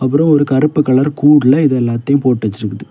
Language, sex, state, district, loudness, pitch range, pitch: Tamil, male, Tamil Nadu, Kanyakumari, -12 LUFS, 120-145 Hz, 135 Hz